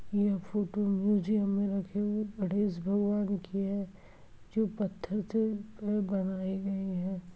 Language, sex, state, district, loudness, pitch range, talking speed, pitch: Hindi, female, Uttar Pradesh, Etah, -32 LUFS, 195-205 Hz, 130 wpm, 200 Hz